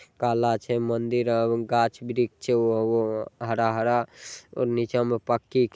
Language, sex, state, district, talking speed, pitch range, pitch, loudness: Maithili, male, Bihar, Saharsa, 155 wpm, 115-120 Hz, 115 Hz, -25 LUFS